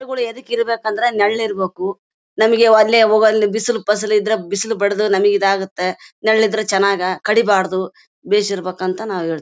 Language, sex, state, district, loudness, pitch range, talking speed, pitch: Kannada, female, Karnataka, Bellary, -16 LUFS, 195-220 Hz, 160 wpm, 210 Hz